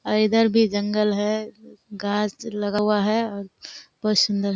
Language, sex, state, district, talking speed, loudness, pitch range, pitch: Hindi, female, Bihar, Kishanganj, 170 wpm, -22 LUFS, 205-215 Hz, 210 Hz